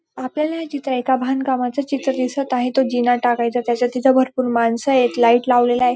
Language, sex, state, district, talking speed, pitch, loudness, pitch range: Marathi, female, Maharashtra, Dhule, 190 wpm, 255 Hz, -18 LUFS, 245-265 Hz